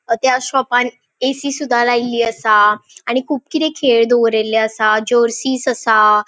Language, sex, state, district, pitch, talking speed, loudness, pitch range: Konkani, female, Goa, North and South Goa, 240 Hz, 125 wpm, -15 LUFS, 220-260 Hz